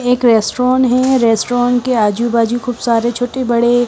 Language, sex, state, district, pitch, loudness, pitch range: Hindi, female, Himachal Pradesh, Shimla, 245 Hz, -14 LUFS, 230-250 Hz